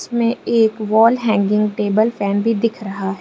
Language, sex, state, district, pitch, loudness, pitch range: Hindi, female, Arunachal Pradesh, Lower Dibang Valley, 220 Hz, -17 LUFS, 205-230 Hz